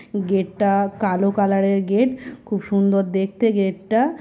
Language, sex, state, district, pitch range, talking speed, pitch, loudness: Bengali, male, West Bengal, North 24 Parganas, 195-220 Hz, 130 wpm, 200 Hz, -20 LUFS